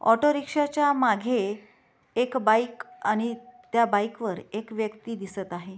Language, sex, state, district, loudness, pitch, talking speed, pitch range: Marathi, female, Maharashtra, Dhule, -26 LUFS, 225 Hz, 135 wpm, 210-245 Hz